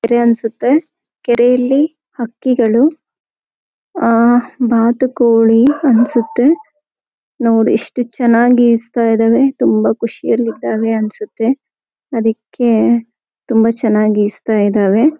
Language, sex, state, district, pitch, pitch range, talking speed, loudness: Kannada, female, Karnataka, Shimoga, 235 Hz, 225-255 Hz, 85 wpm, -13 LUFS